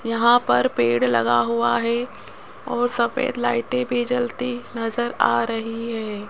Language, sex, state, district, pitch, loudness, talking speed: Hindi, female, Rajasthan, Jaipur, 230 Hz, -21 LUFS, 145 wpm